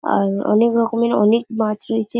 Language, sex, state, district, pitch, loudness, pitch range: Bengali, female, West Bengal, Paschim Medinipur, 225 Hz, -18 LUFS, 215-230 Hz